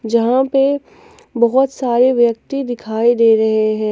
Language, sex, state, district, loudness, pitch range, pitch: Hindi, female, Jharkhand, Palamu, -15 LUFS, 230-270 Hz, 240 Hz